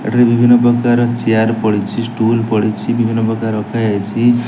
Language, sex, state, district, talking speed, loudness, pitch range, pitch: Odia, male, Odisha, Nuapada, 145 wpm, -14 LUFS, 110-120 Hz, 115 Hz